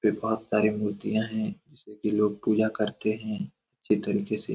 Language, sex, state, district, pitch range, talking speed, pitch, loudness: Hindi, male, Bihar, Saran, 105-110 Hz, 145 wpm, 110 Hz, -28 LUFS